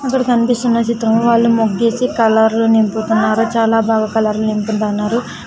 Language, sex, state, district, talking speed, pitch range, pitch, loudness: Telugu, female, Andhra Pradesh, Sri Satya Sai, 120 wpm, 220-235 Hz, 225 Hz, -14 LUFS